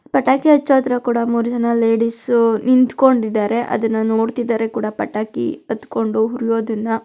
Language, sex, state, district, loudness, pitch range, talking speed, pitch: Kannada, female, Karnataka, Belgaum, -17 LUFS, 225-245 Hz, 120 wpm, 230 Hz